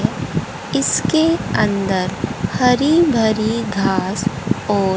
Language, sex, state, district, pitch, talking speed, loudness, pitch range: Hindi, female, Haryana, Jhajjar, 215 Hz, 70 wpm, -18 LUFS, 200-250 Hz